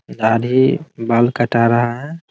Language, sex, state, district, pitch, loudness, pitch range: Hindi, male, Bihar, Muzaffarpur, 120 Hz, -16 LUFS, 115-130 Hz